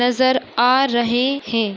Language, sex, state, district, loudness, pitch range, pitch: Hindi, female, Chhattisgarh, Raigarh, -17 LUFS, 240-260 Hz, 245 Hz